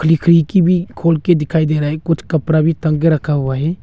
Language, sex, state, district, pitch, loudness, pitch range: Hindi, male, Arunachal Pradesh, Longding, 160 Hz, -15 LUFS, 155-165 Hz